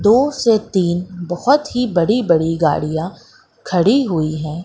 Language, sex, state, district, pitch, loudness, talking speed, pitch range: Hindi, female, Madhya Pradesh, Katni, 180 Hz, -17 LUFS, 140 wpm, 165-235 Hz